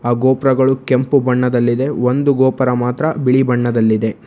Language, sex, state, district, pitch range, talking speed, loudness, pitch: Kannada, male, Karnataka, Bangalore, 120-135 Hz, 125 wpm, -15 LUFS, 130 Hz